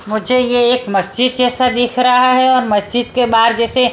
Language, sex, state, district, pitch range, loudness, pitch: Hindi, female, Punjab, Kapurthala, 230-250 Hz, -13 LUFS, 245 Hz